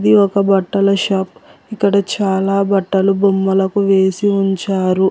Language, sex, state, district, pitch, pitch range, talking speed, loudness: Telugu, female, Telangana, Hyderabad, 195 Hz, 190-200 Hz, 115 wpm, -15 LUFS